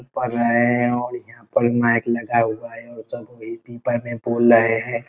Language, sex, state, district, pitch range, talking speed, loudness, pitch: Hindi, male, Bihar, Muzaffarpur, 115-120 Hz, 190 wpm, -19 LUFS, 120 Hz